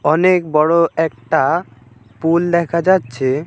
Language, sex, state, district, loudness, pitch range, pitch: Bengali, male, West Bengal, Alipurduar, -16 LUFS, 135-170 Hz, 160 Hz